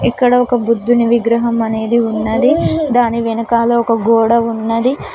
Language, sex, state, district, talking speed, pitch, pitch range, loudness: Telugu, female, Telangana, Mahabubabad, 130 wpm, 235 Hz, 230-240 Hz, -14 LUFS